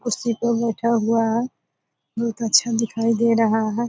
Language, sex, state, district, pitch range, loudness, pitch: Hindi, female, Bihar, Purnia, 225-235 Hz, -20 LUFS, 230 Hz